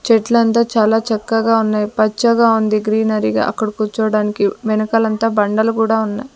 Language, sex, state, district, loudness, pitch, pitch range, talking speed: Telugu, female, Andhra Pradesh, Sri Satya Sai, -15 LUFS, 220 Hz, 215-225 Hz, 130 wpm